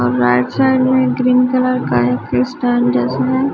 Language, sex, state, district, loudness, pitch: Hindi, female, Chhattisgarh, Raipur, -15 LUFS, 245 Hz